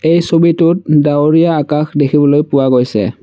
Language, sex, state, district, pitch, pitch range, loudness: Assamese, male, Assam, Sonitpur, 150 Hz, 145-165 Hz, -11 LUFS